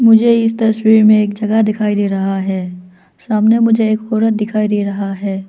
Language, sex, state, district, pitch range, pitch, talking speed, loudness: Hindi, female, Arunachal Pradesh, Lower Dibang Valley, 200-220 Hz, 215 Hz, 195 wpm, -14 LUFS